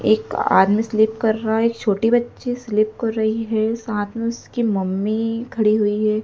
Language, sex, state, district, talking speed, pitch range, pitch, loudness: Hindi, female, Madhya Pradesh, Dhar, 190 wpm, 215-230 Hz, 220 Hz, -20 LUFS